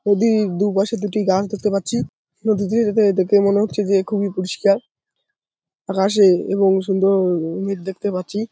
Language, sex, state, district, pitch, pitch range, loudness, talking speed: Bengali, male, West Bengal, Jalpaiguri, 200 Hz, 190-210 Hz, -19 LUFS, 150 wpm